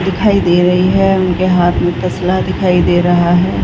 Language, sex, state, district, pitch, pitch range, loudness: Hindi, female, Bihar, Darbhanga, 180 Hz, 175-190 Hz, -12 LUFS